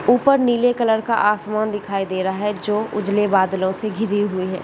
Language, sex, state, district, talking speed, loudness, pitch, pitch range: Hindi, female, Chhattisgarh, Bilaspur, 205 wpm, -19 LUFS, 210 Hz, 195-220 Hz